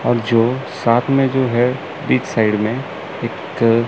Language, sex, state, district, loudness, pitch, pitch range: Hindi, male, Chandigarh, Chandigarh, -18 LUFS, 120 Hz, 115-130 Hz